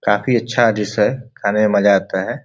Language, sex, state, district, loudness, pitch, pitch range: Bhojpuri, male, Uttar Pradesh, Ghazipur, -17 LUFS, 105 Hz, 105-120 Hz